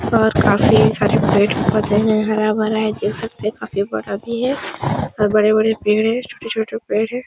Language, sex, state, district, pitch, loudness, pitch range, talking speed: Hindi, female, Uttar Pradesh, Etah, 215 Hz, -17 LUFS, 210-225 Hz, 180 wpm